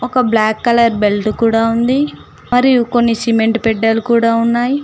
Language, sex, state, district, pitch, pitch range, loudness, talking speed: Telugu, female, Telangana, Mahabubabad, 230 Hz, 225-245 Hz, -13 LUFS, 150 wpm